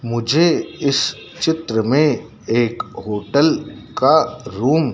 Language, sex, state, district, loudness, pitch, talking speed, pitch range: Hindi, male, Madhya Pradesh, Dhar, -18 LUFS, 140 Hz, 110 wpm, 115-160 Hz